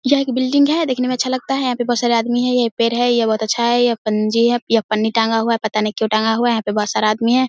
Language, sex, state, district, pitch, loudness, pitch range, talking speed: Hindi, female, Bihar, Samastipur, 235 Hz, -17 LUFS, 220-250 Hz, 345 wpm